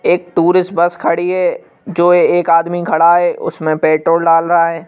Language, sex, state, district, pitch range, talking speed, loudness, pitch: Hindi, male, Madhya Pradesh, Bhopal, 165-175 Hz, 185 wpm, -13 LUFS, 170 Hz